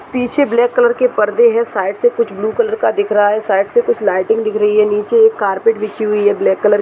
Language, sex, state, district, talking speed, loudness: Hindi, male, Uttar Pradesh, Deoria, 270 wpm, -14 LUFS